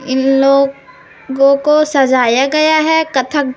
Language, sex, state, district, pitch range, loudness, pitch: Hindi, female, Chhattisgarh, Raipur, 265-300 Hz, -12 LUFS, 275 Hz